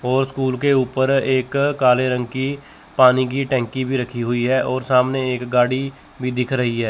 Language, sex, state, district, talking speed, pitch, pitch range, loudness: Hindi, male, Chandigarh, Chandigarh, 200 wpm, 130 Hz, 125-135 Hz, -19 LUFS